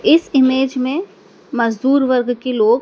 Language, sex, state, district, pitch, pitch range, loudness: Hindi, male, Madhya Pradesh, Dhar, 260 Hz, 245-275 Hz, -16 LUFS